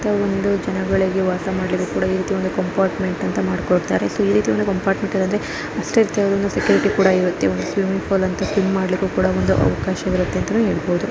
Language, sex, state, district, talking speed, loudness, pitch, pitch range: Kannada, female, Karnataka, Dakshina Kannada, 150 wpm, -19 LUFS, 190 Hz, 180-195 Hz